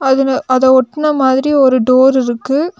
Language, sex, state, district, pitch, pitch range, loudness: Tamil, female, Tamil Nadu, Nilgiris, 265 Hz, 255-275 Hz, -12 LUFS